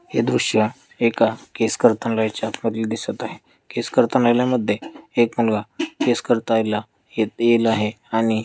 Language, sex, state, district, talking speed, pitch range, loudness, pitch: Marathi, male, Maharashtra, Dhule, 105 wpm, 110-120 Hz, -21 LUFS, 115 Hz